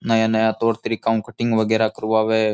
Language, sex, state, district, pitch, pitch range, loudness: Rajasthani, male, Rajasthan, Churu, 110 Hz, 110-115 Hz, -20 LUFS